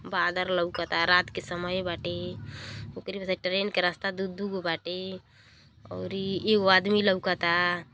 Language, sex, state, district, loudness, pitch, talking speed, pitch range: Bhojpuri, female, Uttar Pradesh, Gorakhpur, -27 LUFS, 180 Hz, 135 wpm, 170-190 Hz